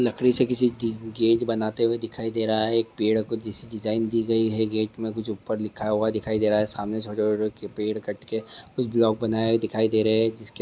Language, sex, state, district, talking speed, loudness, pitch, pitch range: Hindi, male, Andhra Pradesh, Visakhapatnam, 250 wpm, -25 LUFS, 110 Hz, 110-115 Hz